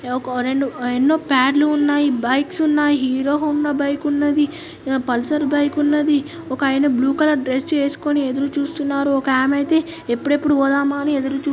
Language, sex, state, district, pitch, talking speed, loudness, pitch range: Telugu, female, Telangana, Nalgonda, 285 Hz, 145 wpm, -18 LUFS, 270-295 Hz